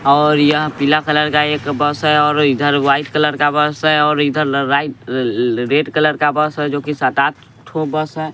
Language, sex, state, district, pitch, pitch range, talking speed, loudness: Hindi, male, Bihar, West Champaran, 150 Hz, 140-150 Hz, 225 wpm, -15 LUFS